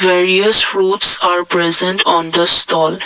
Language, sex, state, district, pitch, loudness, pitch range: English, male, Assam, Kamrup Metropolitan, 180 Hz, -11 LUFS, 170-190 Hz